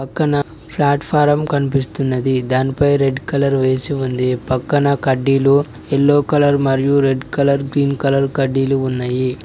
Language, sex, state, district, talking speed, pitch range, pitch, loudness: Telugu, male, Telangana, Mahabubabad, 120 wpm, 130-145 Hz, 135 Hz, -16 LUFS